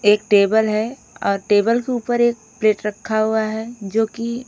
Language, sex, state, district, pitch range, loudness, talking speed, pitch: Hindi, female, Odisha, Khordha, 210-235 Hz, -19 LUFS, 190 wpm, 220 Hz